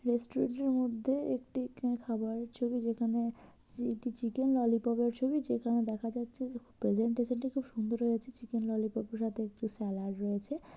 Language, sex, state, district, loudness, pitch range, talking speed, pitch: Bengali, female, West Bengal, Purulia, -34 LUFS, 225-250 Hz, 175 wpm, 235 Hz